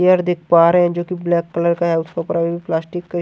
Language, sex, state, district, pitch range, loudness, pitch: Hindi, male, Haryana, Jhajjar, 170-175 Hz, -17 LUFS, 170 Hz